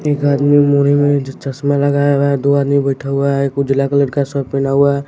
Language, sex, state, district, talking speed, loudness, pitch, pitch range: Hindi, male, Bihar, West Champaran, 250 wpm, -14 LUFS, 140 Hz, 140-145 Hz